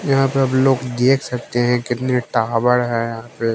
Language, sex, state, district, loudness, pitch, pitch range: Hindi, male, Haryana, Jhajjar, -18 LUFS, 125 Hz, 120-130 Hz